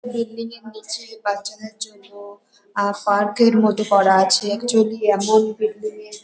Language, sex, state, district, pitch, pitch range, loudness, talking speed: Bengali, female, West Bengal, North 24 Parganas, 215 Hz, 205-220 Hz, -19 LUFS, 155 wpm